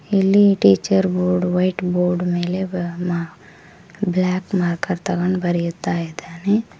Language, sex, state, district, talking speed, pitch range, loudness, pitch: Kannada, male, Karnataka, Koppal, 95 wpm, 175-190 Hz, -19 LUFS, 180 Hz